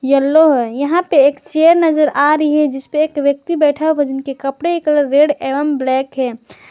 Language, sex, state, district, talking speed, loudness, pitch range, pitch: Hindi, male, Jharkhand, Garhwa, 215 wpm, -14 LUFS, 275-310 Hz, 290 Hz